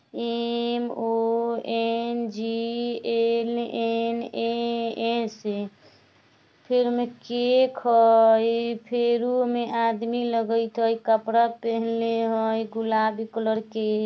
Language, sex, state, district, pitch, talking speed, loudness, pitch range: Bajjika, female, Bihar, Vaishali, 230 Hz, 105 wpm, -24 LUFS, 225-235 Hz